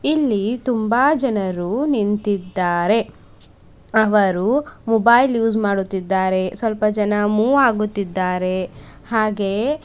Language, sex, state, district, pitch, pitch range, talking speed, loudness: Kannada, female, Karnataka, Bidar, 210 Hz, 190-235 Hz, 85 wpm, -18 LUFS